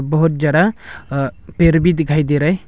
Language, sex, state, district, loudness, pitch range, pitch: Hindi, male, Arunachal Pradesh, Longding, -16 LUFS, 145-170 Hz, 155 Hz